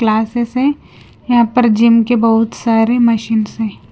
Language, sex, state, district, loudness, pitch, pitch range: Hindi, female, Punjab, Kapurthala, -13 LUFS, 230 Hz, 225-240 Hz